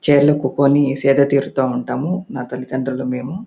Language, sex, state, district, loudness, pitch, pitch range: Telugu, male, Andhra Pradesh, Anantapur, -18 LUFS, 135 Hz, 130-140 Hz